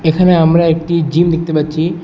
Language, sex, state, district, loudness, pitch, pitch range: Bengali, male, West Bengal, Alipurduar, -12 LUFS, 165 Hz, 160-170 Hz